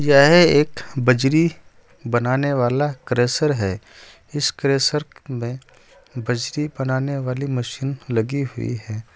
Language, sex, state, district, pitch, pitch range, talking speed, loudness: Hindi, male, Uttar Pradesh, Saharanpur, 130 Hz, 120-140 Hz, 110 wpm, -20 LUFS